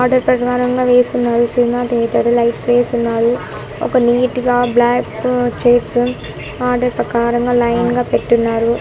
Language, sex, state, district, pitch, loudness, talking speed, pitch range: Telugu, female, Andhra Pradesh, Annamaya, 245 Hz, -15 LUFS, 125 wpm, 235-245 Hz